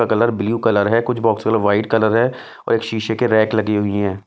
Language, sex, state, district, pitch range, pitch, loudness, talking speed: Hindi, male, Bihar, West Champaran, 105-115 Hz, 110 Hz, -17 LUFS, 265 wpm